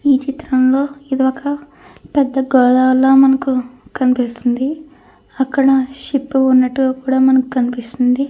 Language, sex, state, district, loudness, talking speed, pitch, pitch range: Telugu, female, Andhra Pradesh, Krishna, -15 LUFS, 100 wpm, 265 Hz, 255-275 Hz